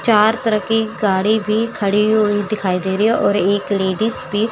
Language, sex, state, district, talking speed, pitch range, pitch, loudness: Hindi, female, Chandigarh, Chandigarh, 200 wpm, 200-220 Hz, 210 Hz, -17 LUFS